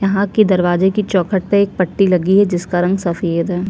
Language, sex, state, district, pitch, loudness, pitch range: Hindi, female, Chhattisgarh, Sukma, 185 Hz, -15 LUFS, 175-200 Hz